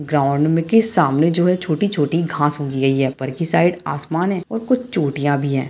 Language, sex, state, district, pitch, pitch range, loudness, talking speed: Hindi, male, Bihar, Darbhanga, 155 Hz, 140-180 Hz, -18 LUFS, 230 wpm